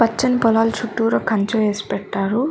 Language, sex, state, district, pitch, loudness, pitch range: Telugu, female, Andhra Pradesh, Chittoor, 225 Hz, -19 LUFS, 205-230 Hz